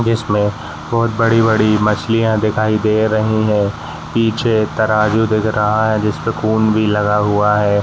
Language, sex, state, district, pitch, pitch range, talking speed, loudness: Hindi, male, Uttar Pradesh, Jalaun, 110 Hz, 105-110 Hz, 155 wpm, -15 LUFS